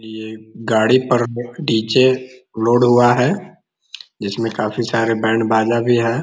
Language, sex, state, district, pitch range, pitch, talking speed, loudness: Hindi, male, Uttar Pradesh, Ghazipur, 110-125 Hz, 115 Hz, 135 wpm, -17 LUFS